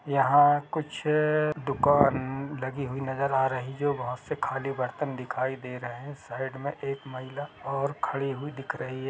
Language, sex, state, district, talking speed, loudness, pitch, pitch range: Hindi, male, Chhattisgarh, Rajnandgaon, 170 wpm, -28 LUFS, 135 Hz, 130-145 Hz